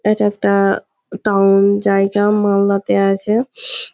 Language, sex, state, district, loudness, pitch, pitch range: Bengali, female, West Bengal, Malda, -15 LUFS, 200 Hz, 195-210 Hz